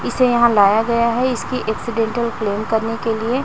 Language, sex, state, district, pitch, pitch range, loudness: Hindi, female, Chhattisgarh, Raipur, 235 Hz, 220-240 Hz, -18 LUFS